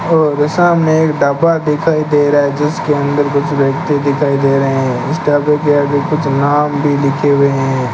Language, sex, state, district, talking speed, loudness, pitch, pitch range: Hindi, male, Rajasthan, Bikaner, 195 wpm, -13 LUFS, 145 Hz, 140-150 Hz